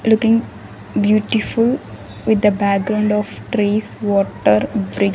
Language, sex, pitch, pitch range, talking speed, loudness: English, female, 210 Hz, 195-220 Hz, 105 wpm, -17 LUFS